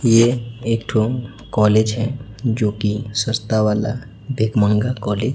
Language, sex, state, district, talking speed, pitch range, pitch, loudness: Hindi, male, Chhattisgarh, Raipur, 145 wpm, 105-120 Hz, 110 Hz, -19 LUFS